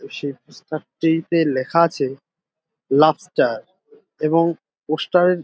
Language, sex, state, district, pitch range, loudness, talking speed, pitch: Bengali, male, West Bengal, Dakshin Dinajpur, 155-170 Hz, -20 LUFS, 110 wpm, 160 Hz